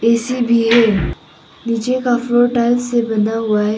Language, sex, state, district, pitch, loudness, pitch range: Hindi, female, Arunachal Pradesh, Papum Pare, 235 Hz, -15 LUFS, 225-240 Hz